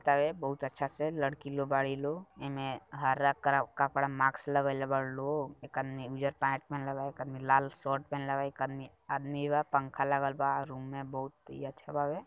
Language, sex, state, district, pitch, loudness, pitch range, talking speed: Bhojpuri, male, Bihar, Gopalganj, 140 Hz, -34 LUFS, 135-145 Hz, 210 wpm